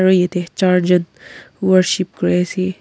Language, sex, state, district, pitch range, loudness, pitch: Nagamese, female, Nagaland, Kohima, 180-185 Hz, -16 LUFS, 185 Hz